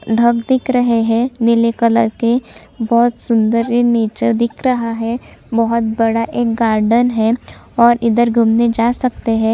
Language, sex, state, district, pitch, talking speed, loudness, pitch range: Hindi, female, Chhattisgarh, Sukma, 235 Hz, 165 wpm, -15 LUFS, 230-235 Hz